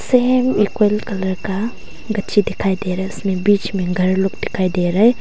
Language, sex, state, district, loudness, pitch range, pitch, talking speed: Hindi, female, Arunachal Pradesh, Longding, -18 LUFS, 190-210 Hz, 200 Hz, 205 wpm